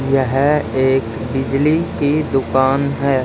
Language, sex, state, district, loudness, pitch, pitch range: Hindi, male, Haryana, Charkhi Dadri, -17 LUFS, 135 Hz, 130-140 Hz